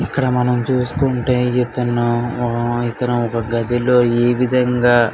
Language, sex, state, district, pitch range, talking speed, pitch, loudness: Telugu, male, Andhra Pradesh, Anantapur, 120-125 Hz, 130 wpm, 120 Hz, -17 LUFS